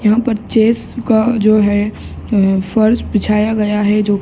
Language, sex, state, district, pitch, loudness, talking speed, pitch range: Hindi, male, Uttar Pradesh, Gorakhpur, 215 Hz, -14 LUFS, 185 wpm, 210-225 Hz